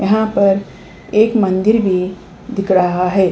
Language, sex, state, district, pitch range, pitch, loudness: Hindi, female, Uttar Pradesh, Hamirpur, 185-215 Hz, 195 Hz, -15 LUFS